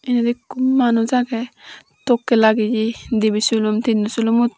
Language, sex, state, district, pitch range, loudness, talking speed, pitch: Chakma, female, Tripura, Dhalai, 220-245 Hz, -18 LUFS, 145 wpm, 230 Hz